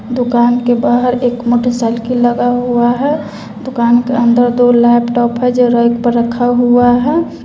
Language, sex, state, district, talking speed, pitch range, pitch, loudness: Hindi, female, Bihar, West Champaran, 160 wpm, 235-245 Hz, 245 Hz, -12 LUFS